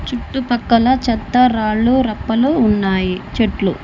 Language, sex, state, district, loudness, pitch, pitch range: Telugu, female, Telangana, Mahabubabad, -16 LUFS, 230 Hz, 215-250 Hz